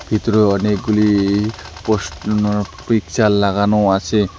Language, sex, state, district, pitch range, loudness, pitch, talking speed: Bengali, male, West Bengal, Alipurduar, 100-110 Hz, -16 LUFS, 105 Hz, 95 wpm